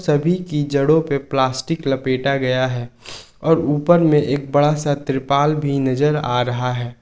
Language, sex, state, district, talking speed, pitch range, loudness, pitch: Hindi, male, Jharkhand, Ranchi, 170 wpm, 130-150 Hz, -18 LUFS, 140 Hz